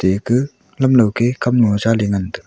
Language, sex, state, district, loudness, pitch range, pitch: Wancho, male, Arunachal Pradesh, Longding, -16 LUFS, 100-125 Hz, 115 Hz